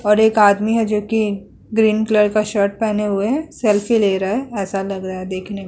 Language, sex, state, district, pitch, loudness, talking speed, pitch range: Hindi, female, Uttar Pradesh, Muzaffarnagar, 210 Hz, -18 LUFS, 230 wpm, 200-220 Hz